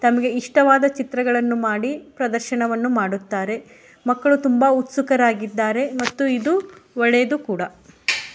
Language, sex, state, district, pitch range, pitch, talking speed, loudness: Kannada, female, Karnataka, Shimoga, 235-270 Hz, 250 Hz, 95 wpm, -20 LUFS